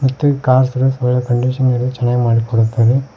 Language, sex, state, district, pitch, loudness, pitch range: Kannada, male, Karnataka, Koppal, 125 Hz, -15 LUFS, 120-130 Hz